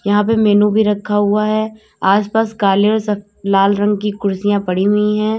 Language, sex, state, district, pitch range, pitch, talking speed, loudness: Hindi, female, Uttar Pradesh, Lalitpur, 200-215 Hz, 210 Hz, 180 wpm, -15 LUFS